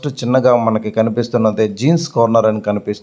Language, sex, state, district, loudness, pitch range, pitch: Telugu, male, Andhra Pradesh, Visakhapatnam, -15 LUFS, 110-125 Hz, 115 Hz